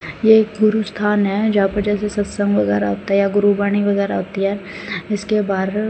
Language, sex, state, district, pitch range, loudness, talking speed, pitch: Hindi, male, Haryana, Rohtak, 195-210 Hz, -18 LUFS, 215 wpm, 205 Hz